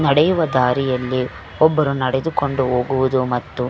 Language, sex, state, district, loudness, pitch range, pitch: Kannada, female, Karnataka, Belgaum, -18 LUFS, 125-145 Hz, 130 Hz